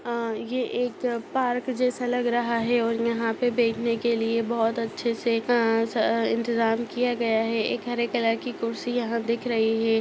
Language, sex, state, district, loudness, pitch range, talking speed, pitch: Hindi, female, Chhattisgarh, Kabirdham, -25 LUFS, 230-245 Hz, 190 wpm, 235 Hz